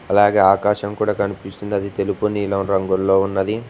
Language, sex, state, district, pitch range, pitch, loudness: Telugu, male, Telangana, Mahabubabad, 95-105 Hz, 100 Hz, -19 LUFS